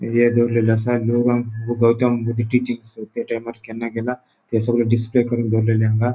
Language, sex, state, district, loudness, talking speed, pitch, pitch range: Konkani, male, Goa, North and South Goa, -19 LUFS, 155 wpm, 115 Hz, 115-120 Hz